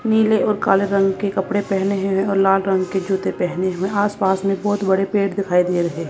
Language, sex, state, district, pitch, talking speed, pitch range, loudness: Hindi, female, Punjab, Kapurthala, 195 Hz, 235 wpm, 190-200 Hz, -19 LUFS